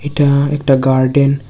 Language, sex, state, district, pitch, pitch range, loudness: Bengali, male, Tripura, West Tripura, 140 Hz, 135-145 Hz, -13 LUFS